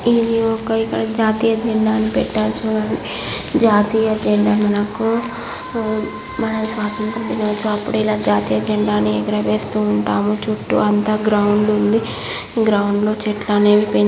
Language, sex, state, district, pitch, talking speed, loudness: Telugu, female, Andhra Pradesh, Guntur, 210 Hz, 120 wpm, -17 LUFS